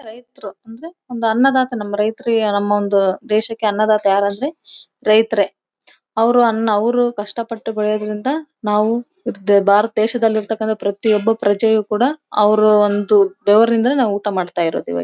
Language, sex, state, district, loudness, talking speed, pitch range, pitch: Kannada, female, Karnataka, Bellary, -16 LUFS, 120 wpm, 205-230 Hz, 215 Hz